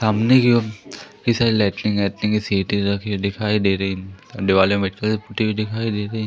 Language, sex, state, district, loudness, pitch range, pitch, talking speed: Hindi, male, Madhya Pradesh, Umaria, -20 LUFS, 100-110 Hz, 105 Hz, 220 wpm